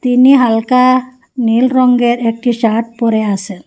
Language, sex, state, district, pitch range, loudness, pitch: Bengali, female, Assam, Hailakandi, 225-255 Hz, -12 LUFS, 240 Hz